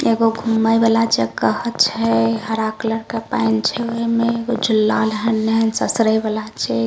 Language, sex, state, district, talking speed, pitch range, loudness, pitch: Maithili, female, Bihar, Samastipur, 150 wpm, 215-230 Hz, -18 LUFS, 225 Hz